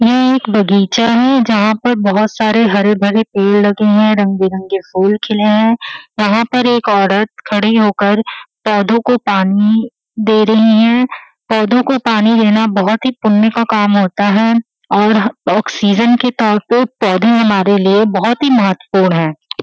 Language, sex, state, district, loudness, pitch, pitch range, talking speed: Hindi, female, Uttar Pradesh, Varanasi, -12 LUFS, 215 Hz, 205-230 Hz, 160 wpm